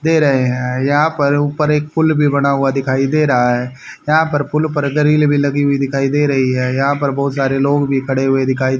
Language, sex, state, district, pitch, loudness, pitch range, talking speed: Hindi, male, Haryana, Charkhi Dadri, 140 Hz, -15 LUFS, 135-150 Hz, 245 wpm